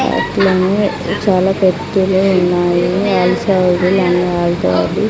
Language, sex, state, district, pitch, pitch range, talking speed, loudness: Telugu, female, Andhra Pradesh, Sri Satya Sai, 185 Hz, 175-190 Hz, 80 wpm, -14 LUFS